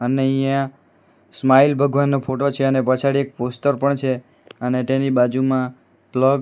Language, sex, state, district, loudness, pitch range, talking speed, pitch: Gujarati, male, Gujarat, Valsad, -19 LUFS, 125-140 Hz, 160 wpm, 135 Hz